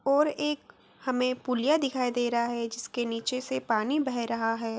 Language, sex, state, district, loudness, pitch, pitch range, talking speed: Hindi, female, Bihar, Araria, -29 LUFS, 250 Hz, 235-270 Hz, 200 wpm